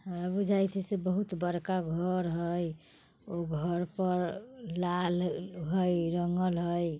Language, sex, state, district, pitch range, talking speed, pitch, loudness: Bajjika, female, Bihar, Vaishali, 170-185 Hz, 135 wpm, 180 Hz, -32 LUFS